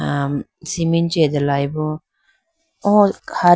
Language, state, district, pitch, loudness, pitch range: Idu Mishmi, Arunachal Pradesh, Lower Dibang Valley, 165 Hz, -19 LUFS, 145-200 Hz